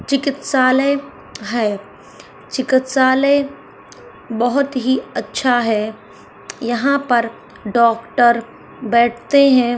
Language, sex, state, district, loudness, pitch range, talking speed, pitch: Hindi, female, Rajasthan, Churu, -17 LUFS, 235-275 Hz, 75 wpm, 250 Hz